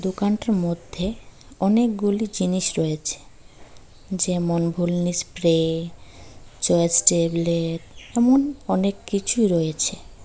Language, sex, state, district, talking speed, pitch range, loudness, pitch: Bengali, female, Tripura, Dhalai, 80 wpm, 165-200 Hz, -22 LUFS, 175 Hz